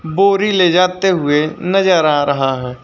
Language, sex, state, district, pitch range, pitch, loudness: Hindi, male, Uttar Pradesh, Lucknow, 145-190 Hz, 175 Hz, -14 LUFS